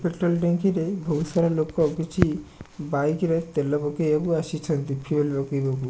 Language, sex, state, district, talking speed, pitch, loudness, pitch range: Odia, male, Odisha, Nuapada, 140 wpm, 160 Hz, -25 LUFS, 145-170 Hz